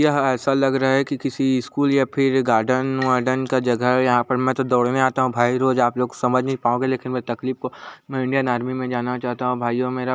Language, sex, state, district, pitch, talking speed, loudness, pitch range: Hindi, male, Chhattisgarh, Korba, 130 Hz, 250 wpm, -20 LUFS, 125-130 Hz